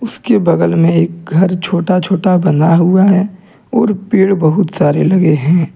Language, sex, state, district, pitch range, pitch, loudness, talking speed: Hindi, male, Jharkhand, Deoghar, 170-195 Hz, 180 Hz, -12 LUFS, 165 wpm